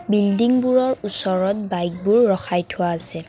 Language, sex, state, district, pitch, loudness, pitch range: Assamese, female, Assam, Kamrup Metropolitan, 200 Hz, -17 LUFS, 175-230 Hz